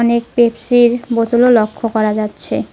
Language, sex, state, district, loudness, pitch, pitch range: Bengali, female, West Bengal, Cooch Behar, -14 LUFS, 235 Hz, 215-240 Hz